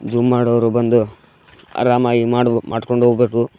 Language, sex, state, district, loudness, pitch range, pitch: Kannada, male, Karnataka, Koppal, -16 LUFS, 115-120 Hz, 120 Hz